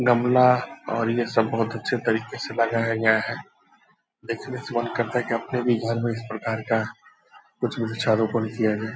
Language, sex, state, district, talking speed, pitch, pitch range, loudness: Hindi, male, Bihar, Purnia, 185 wpm, 115 Hz, 115-120 Hz, -24 LUFS